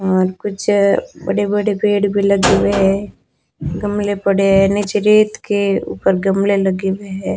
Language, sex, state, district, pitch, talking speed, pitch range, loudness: Hindi, female, Rajasthan, Bikaner, 200 Hz, 165 wpm, 195-205 Hz, -16 LUFS